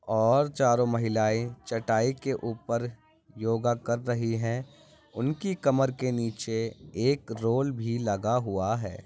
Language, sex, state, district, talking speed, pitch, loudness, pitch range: Hindi, male, Andhra Pradesh, Visakhapatnam, 130 wpm, 115 Hz, -28 LUFS, 115-130 Hz